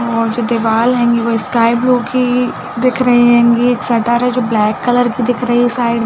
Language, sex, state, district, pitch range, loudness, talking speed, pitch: Hindi, female, Chhattisgarh, Bilaspur, 235-245 Hz, -13 LUFS, 220 wpm, 240 Hz